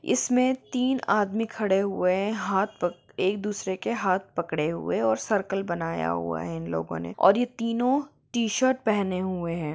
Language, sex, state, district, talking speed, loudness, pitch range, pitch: Hindi, female, Jharkhand, Jamtara, 185 wpm, -26 LUFS, 165-225 Hz, 195 Hz